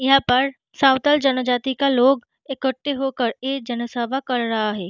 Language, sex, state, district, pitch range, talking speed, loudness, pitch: Hindi, female, Uttar Pradesh, Deoria, 245-275 Hz, 135 wpm, -20 LUFS, 265 Hz